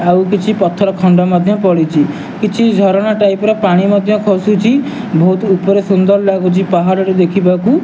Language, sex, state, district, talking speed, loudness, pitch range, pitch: Odia, male, Odisha, Nuapada, 140 wpm, -12 LUFS, 185-205 Hz, 195 Hz